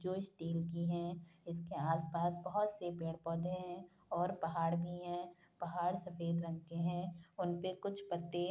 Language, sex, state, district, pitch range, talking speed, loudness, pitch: Hindi, female, Uttar Pradesh, Hamirpur, 170-180 Hz, 175 wpm, -41 LUFS, 175 Hz